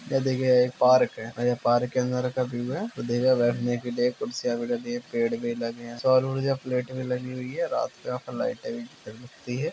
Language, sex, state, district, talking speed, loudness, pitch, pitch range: Hindi, male, Uttar Pradesh, Jalaun, 260 wpm, -26 LUFS, 125 Hz, 120-135 Hz